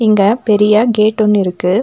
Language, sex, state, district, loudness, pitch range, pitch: Tamil, female, Tamil Nadu, Nilgiris, -12 LUFS, 200-215 Hz, 210 Hz